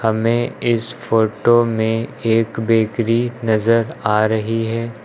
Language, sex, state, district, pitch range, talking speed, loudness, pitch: Hindi, male, Uttar Pradesh, Lucknow, 110-115 Hz, 120 wpm, -18 LUFS, 115 Hz